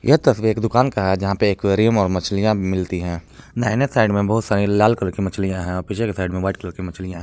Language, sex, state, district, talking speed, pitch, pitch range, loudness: Hindi, male, Jharkhand, Palamu, 255 wpm, 100 Hz, 95-110 Hz, -19 LUFS